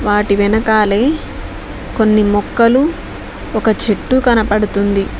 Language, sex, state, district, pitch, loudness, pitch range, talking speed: Telugu, female, Telangana, Mahabubabad, 215 Hz, -14 LUFS, 205-230 Hz, 80 wpm